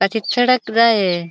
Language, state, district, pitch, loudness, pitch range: Bhili, Maharashtra, Dhule, 220 Hz, -16 LUFS, 195-240 Hz